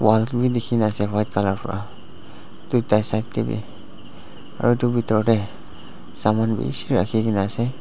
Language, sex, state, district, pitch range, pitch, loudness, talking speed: Nagamese, male, Nagaland, Dimapur, 105-120 Hz, 110 Hz, -21 LUFS, 115 wpm